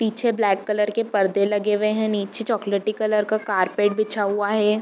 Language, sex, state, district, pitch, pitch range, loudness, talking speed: Hindi, female, Bihar, East Champaran, 210 Hz, 205-215 Hz, -22 LUFS, 200 wpm